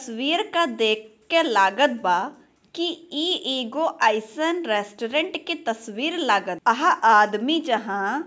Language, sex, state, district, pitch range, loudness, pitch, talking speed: Bhojpuri, female, Bihar, Gopalganj, 215-330 Hz, -22 LUFS, 260 Hz, 130 wpm